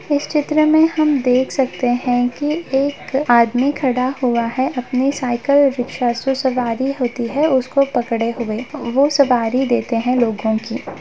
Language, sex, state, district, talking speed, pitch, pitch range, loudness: Hindi, female, Bihar, Gaya, 160 wpm, 255 Hz, 240-280 Hz, -17 LUFS